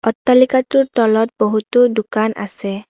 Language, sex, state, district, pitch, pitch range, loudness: Assamese, female, Assam, Kamrup Metropolitan, 225 Hz, 215-250 Hz, -15 LUFS